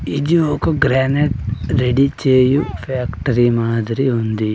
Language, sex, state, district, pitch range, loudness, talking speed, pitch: Telugu, male, Andhra Pradesh, Sri Satya Sai, 115-140 Hz, -17 LUFS, 105 wpm, 130 Hz